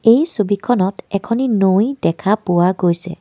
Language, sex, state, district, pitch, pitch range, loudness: Assamese, female, Assam, Kamrup Metropolitan, 200 Hz, 185-230 Hz, -16 LUFS